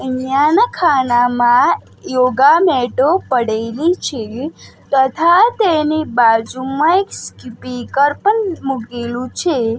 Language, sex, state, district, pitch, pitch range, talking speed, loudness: Gujarati, female, Gujarat, Gandhinagar, 265 Hz, 245-325 Hz, 90 wpm, -15 LUFS